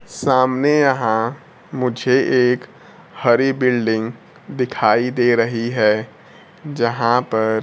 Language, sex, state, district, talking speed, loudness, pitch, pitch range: Hindi, male, Bihar, Kaimur, 95 wpm, -18 LUFS, 125 Hz, 115-130 Hz